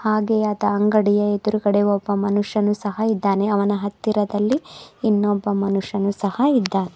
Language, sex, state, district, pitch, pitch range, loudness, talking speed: Kannada, female, Karnataka, Bidar, 205 Hz, 200-215 Hz, -20 LUFS, 120 wpm